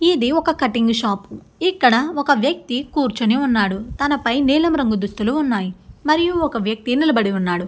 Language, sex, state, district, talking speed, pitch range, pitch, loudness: Telugu, female, Andhra Pradesh, Guntur, 155 wpm, 225-300 Hz, 255 Hz, -18 LUFS